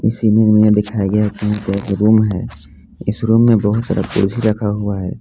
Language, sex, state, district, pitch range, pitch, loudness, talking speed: Hindi, male, Jharkhand, Palamu, 105-110 Hz, 105 Hz, -15 LUFS, 125 wpm